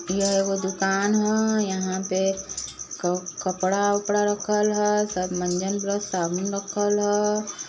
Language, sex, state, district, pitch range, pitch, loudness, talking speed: Bhojpuri, female, Uttar Pradesh, Varanasi, 185-205 Hz, 195 Hz, -24 LUFS, 135 wpm